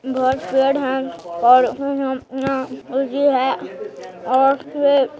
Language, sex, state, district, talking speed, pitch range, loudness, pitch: Hindi, female, Chhattisgarh, Jashpur, 115 wpm, 255-275 Hz, -18 LUFS, 265 Hz